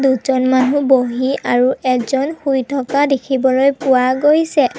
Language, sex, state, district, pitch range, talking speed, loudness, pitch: Assamese, female, Assam, Kamrup Metropolitan, 255-280 Hz, 125 wpm, -15 LUFS, 265 Hz